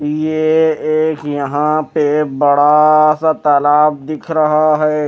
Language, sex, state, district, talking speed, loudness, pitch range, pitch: Hindi, male, Chandigarh, Chandigarh, 120 wpm, -13 LUFS, 150-155 Hz, 150 Hz